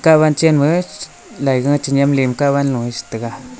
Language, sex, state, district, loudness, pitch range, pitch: Wancho, male, Arunachal Pradesh, Longding, -16 LUFS, 125-150 Hz, 140 Hz